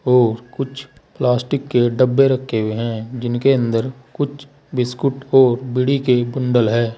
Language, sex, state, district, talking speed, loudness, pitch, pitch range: Hindi, male, Uttar Pradesh, Saharanpur, 145 wpm, -18 LUFS, 125 Hz, 120-135 Hz